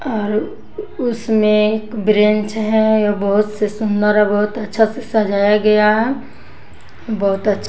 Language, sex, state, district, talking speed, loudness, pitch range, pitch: Hindi, female, Bihar, West Champaran, 140 wpm, -16 LUFS, 210-220 Hz, 215 Hz